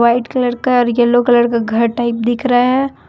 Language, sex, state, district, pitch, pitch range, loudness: Hindi, female, Jharkhand, Deoghar, 240 Hz, 235-250 Hz, -14 LUFS